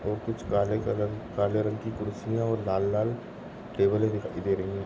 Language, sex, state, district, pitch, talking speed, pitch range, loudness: Hindi, male, Goa, North and South Goa, 105 Hz, 195 wpm, 100-110 Hz, -29 LUFS